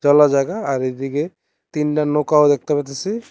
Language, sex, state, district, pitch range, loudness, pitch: Bengali, male, Tripura, West Tripura, 140-150 Hz, -18 LUFS, 150 Hz